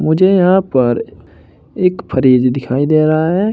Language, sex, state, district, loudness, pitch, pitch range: Hindi, male, Uttar Pradesh, Shamli, -13 LUFS, 155 Hz, 130-185 Hz